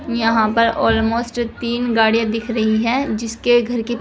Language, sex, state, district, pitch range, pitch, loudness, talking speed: Hindi, female, Uttar Pradesh, Shamli, 225-240 Hz, 230 Hz, -18 LUFS, 165 wpm